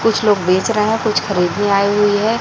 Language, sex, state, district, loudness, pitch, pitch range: Hindi, female, Chhattisgarh, Raipur, -15 LUFS, 205 Hz, 200-215 Hz